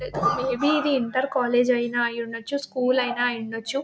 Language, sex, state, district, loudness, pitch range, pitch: Telugu, female, Telangana, Nalgonda, -24 LUFS, 240-270 Hz, 250 Hz